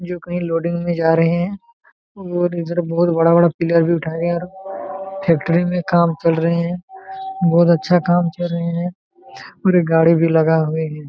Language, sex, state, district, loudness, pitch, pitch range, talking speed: Hindi, male, Jharkhand, Jamtara, -17 LUFS, 170 Hz, 165-180 Hz, 190 wpm